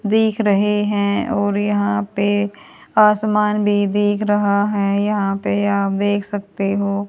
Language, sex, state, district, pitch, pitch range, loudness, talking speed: Hindi, female, Haryana, Rohtak, 205 Hz, 200-210 Hz, -18 LUFS, 150 wpm